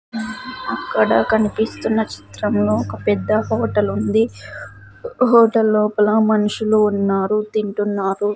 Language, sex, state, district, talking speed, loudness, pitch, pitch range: Telugu, female, Andhra Pradesh, Sri Satya Sai, 85 wpm, -18 LUFS, 215 Hz, 205-220 Hz